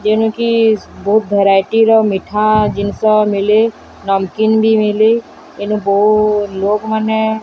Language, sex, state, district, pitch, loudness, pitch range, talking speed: Odia, female, Odisha, Sambalpur, 215 Hz, -13 LUFS, 205-220 Hz, 120 wpm